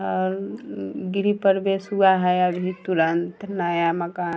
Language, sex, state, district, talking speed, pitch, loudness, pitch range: Hindi, female, Bihar, Vaishali, 150 wpm, 180 Hz, -23 LUFS, 165-190 Hz